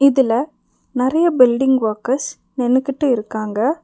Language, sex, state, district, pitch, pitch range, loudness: Tamil, female, Tamil Nadu, Nilgiris, 260 Hz, 240-275 Hz, -17 LUFS